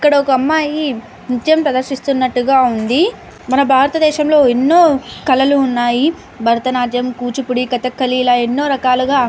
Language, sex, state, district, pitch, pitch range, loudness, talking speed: Telugu, female, Andhra Pradesh, Anantapur, 260 Hz, 250-285 Hz, -14 LUFS, 125 wpm